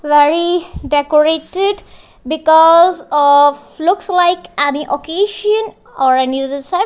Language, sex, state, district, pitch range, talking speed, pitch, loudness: English, female, Punjab, Kapurthala, 290-360 Hz, 95 wpm, 320 Hz, -13 LUFS